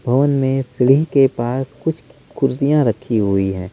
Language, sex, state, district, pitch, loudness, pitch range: Hindi, male, Uttar Pradesh, Lalitpur, 135 Hz, -17 LUFS, 120-140 Hz